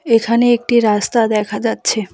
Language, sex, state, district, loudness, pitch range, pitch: Bengali, female, West Bengal, Alipurduar, -15 LUFS, 215-235 Hz, 225 Hz